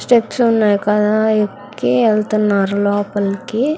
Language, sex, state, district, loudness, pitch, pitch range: Telugu, female, Andhra Pradesh, Krishna, -16 LUFS, 210 Hz, 200-220 Hz